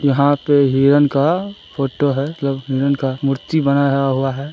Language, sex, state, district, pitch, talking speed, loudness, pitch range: Hindi, male, Bihar, Jamui, 140 Hz, 170 wpm, -17 LUFS, 135-145 Hz